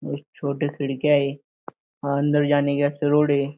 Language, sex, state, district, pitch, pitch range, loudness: Hindi, male, Maharashtra, Aurangabad, 145 Hz, 140-145 Hz, -22 LUFS